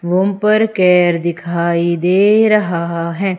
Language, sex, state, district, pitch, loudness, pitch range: Hindi, female, Madhya Pradesh, Umaria, 180 Hz, -14 LUFS, 170-200 Hz